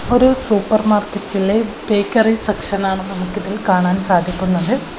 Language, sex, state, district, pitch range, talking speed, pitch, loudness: Malayalam, female, Kerala, Kozhikode, 190-220 Hz, 110 wpm, 205 Hz, -16 LUFS